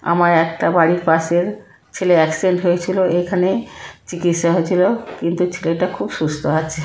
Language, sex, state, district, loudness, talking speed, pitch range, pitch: Bengali, female, West Bengal, Kolkata, -17 LUFS, 140 wpm, 165-180 Hz, 175 Hz